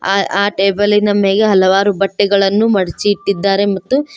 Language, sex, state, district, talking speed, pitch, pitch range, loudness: Kannada, female, Karnataka, Koppal, 115 wpm, 200 Hz, 195-205 Hz, -13 LUFS